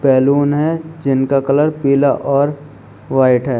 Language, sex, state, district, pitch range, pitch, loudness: Hindi, male, Uttar Pradesh, Shamli, 135-145 Hz, 140 Hz, -15 LUFS